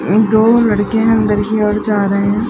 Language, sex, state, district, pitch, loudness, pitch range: Hindi, female, Bihar, Gaya, 215 Hz, -13 LUFS, 205-220 Hz